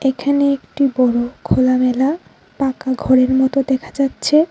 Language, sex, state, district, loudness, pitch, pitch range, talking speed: Bengali, female, Tripura, Unakoti, -16 LUFS, 265 Hz, 255-280 Hz, 120 wpm